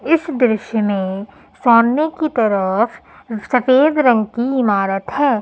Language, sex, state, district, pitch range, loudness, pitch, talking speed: Hindi, female, Uttar Pradesh, Lucknow, 210-270 Hz, -16 LUFS, 235 Hz, 120 wpm